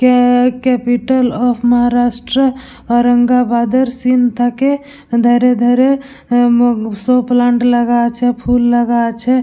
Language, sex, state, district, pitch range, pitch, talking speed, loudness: Bengali, female, West Bengal, Purulia, 240-250 Hz, 245 Hz, 110 wpm, -13 LUFS